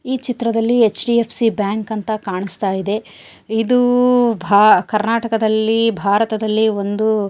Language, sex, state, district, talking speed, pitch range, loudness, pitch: Kannada, female, Karnataka, Shimoga, 100 wpm, 210-230 Hz, -16 LUFS, 220 Hz